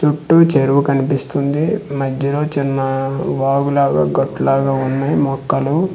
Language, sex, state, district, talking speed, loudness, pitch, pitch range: Telugu, male, Andhra Pradesh, Manyam, 100 wpm, -16 LUFS, 140 Hz, 135-145 Hz